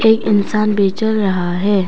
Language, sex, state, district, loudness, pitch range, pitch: Hindi, female, Arunachal Pradesh, Papum Pare, -15 LUFS, 195-215 Hz, 205 Hz